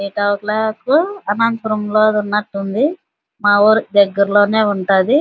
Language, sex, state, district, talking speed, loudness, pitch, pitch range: Telugu, female, Andhra Pradesh, Anantapur, 115 wpm, -15 LUFS, 210 Hz, 205-220 Hz